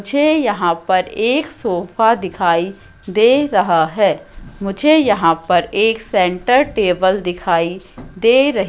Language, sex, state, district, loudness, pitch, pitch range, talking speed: Hindi, female, Madhya Pradesh, Katni, -15 LUFS, 190 Hz, 175-225 Hz, 125 wpm